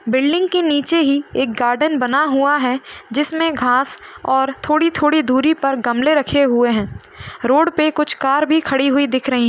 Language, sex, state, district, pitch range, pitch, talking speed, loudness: Hindi, female, Uttar Pradesh, Hamirpur, 260-305 Hz, 280 Hz, 185 wpm, -16 LUFS